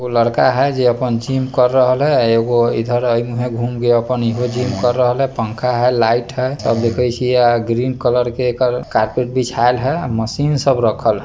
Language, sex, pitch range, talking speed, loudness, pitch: Bajjika, male, 120-125 Hz, 210 wpm, -16 LUFS, 125 Hz